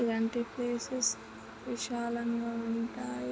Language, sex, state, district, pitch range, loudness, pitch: Telugu, male, Andhra Pradesh, Chittoor, 230-240 Hz, -34 LUFS, 235 Hz